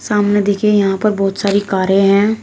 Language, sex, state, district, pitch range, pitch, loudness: Hindi, female, Uttar Pradesh, Shamli, 195-210 Hz, 205 Hz, -14 LUFS